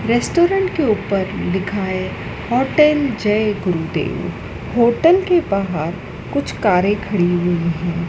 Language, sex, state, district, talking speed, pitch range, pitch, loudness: Hindi, female, Madhya Pradesh, Dhar, 110 wpm, 180-270 Hz, 200 Hz, -18 LUFS